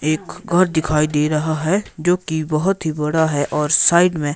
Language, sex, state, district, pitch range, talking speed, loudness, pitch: Hindi, male, Himachal Pradesh, Shimla, 150-175 Hz, 205 wpm, -18 LUFS, 155 Hz